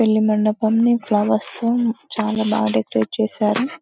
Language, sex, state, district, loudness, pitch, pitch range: Telugu, female, Telangana, Karimnagar, -19 LUFS, 220 Hz, 215-235 Hz